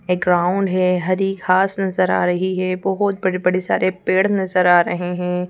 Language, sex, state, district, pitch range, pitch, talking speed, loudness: Hindi, female, Madhya Pradesh, Bhopal, 180-190 Hz, 185 Hz, 185 wpm, -18 LUFS